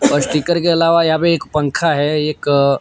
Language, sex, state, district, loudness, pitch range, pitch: Hindi, male, Gujarat, Gandhinagar, -15 LUFS, 145-170 Hz, 160 Hz